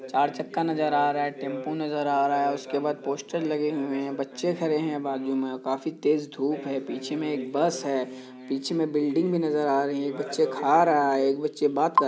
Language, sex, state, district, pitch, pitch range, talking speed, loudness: Hindi, male, Bihar, Kishanganj, 145 Hz, 135-150 Hz, 235 wpm, -26 LUFS